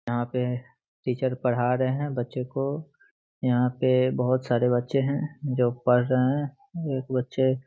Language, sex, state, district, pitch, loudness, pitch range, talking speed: Hindi, male, Bihar, Muzaffarpur, 130 Hz, -26 LUFS, 125-135 Hz, 155 wpm